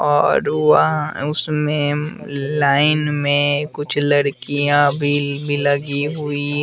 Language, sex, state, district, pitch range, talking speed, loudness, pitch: Hindi, male, Bihar, West Champaran, 145-150 Hz, 100 wpm, -18 LUFS, 145 Hz